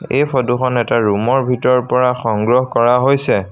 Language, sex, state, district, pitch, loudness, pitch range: Assamese, male, Assam, Sonitpur, 125 Hz, -15 LUFS, 120-130 Hz